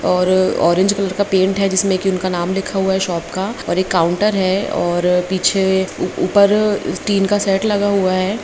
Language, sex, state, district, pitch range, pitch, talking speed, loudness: Hindi, female, Bihar, Begusarai, 185-200 Hz, 190 Hz, 205 wpm, -16 LUFS